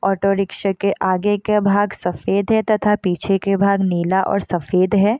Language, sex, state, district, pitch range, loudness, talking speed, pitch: Hindi, female, Bihar, Sitamarhi, 190-205 Hz, -18 LUFS, 185 wpm, 195 Hz